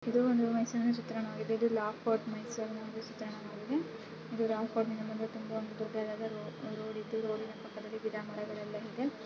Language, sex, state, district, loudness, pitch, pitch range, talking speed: Kannada, female, Karnataka, Mysore, -36 LUFS, 220 Hz, 215-225 Hz, 135 wpm